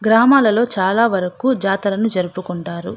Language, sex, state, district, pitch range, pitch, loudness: Telugu, female, Andhra Pradesh, Anantapur, 185-230 Hz, 200 Hz, -17 LUFS